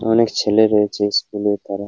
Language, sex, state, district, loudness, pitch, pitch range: Bengali, male, West Bengal, Paschim Medinipur, -17 LUFS, 105 Hz, 105-110 Hz